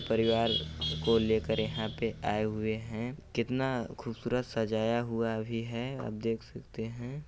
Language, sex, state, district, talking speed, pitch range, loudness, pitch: Hindi, male, Chhattisgarh, Balrampur, 150 wpm, 110-120 Hz, -32 LUFS, 115 Hz